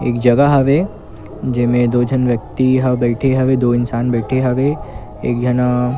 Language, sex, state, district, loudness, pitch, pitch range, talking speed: Chhattisgarhi, male, Chhattisgarh, Kabirdham, -15 LUFS, 125 Hz, 120-130 Hz, 150 wpm